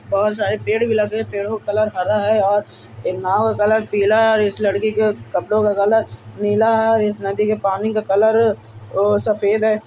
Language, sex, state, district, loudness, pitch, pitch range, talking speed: Hindi, male, Bihar, Araria, -18 LUFS, 210 Hz, 200-215 Hz, 220 wpm